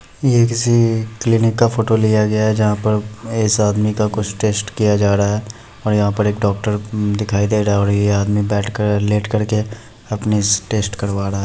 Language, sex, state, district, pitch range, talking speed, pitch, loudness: Hindi, male, Bihar, Muzaffarpur, 105-110 Hz, 220 wpm, 105 Hz, -17 LUFS